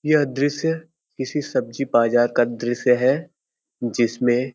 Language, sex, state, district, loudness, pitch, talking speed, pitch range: Hindi, male, Uttar Pradesh, Ghazipur, -21 LUFS, 130 Hz, 130 wpm, 120-150 Hz